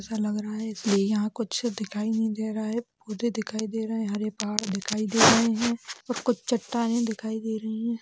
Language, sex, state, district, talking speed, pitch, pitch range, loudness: Hindi, female, Chhattisgarh, Raigarh, 225 wpm, 220 Hz, 215-230 Hz, -27 LUFS